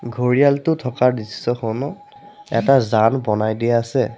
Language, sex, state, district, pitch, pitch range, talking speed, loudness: Assamese, male, Assam, Sonitpur, 125 Hz, 115-140 Hz, 115 wpm, -18 LUFS